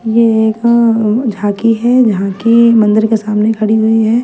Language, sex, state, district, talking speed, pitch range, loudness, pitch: Hindi, female, Punjab, Fazilka, 170 wpm, 215-230 Hz, -11 LUFS, 225 Hz